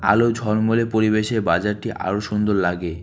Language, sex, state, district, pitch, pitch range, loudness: Bengali, male, West Bengal, Alipurduar, 105 Hz, 100-110 Hz, -20 LUFS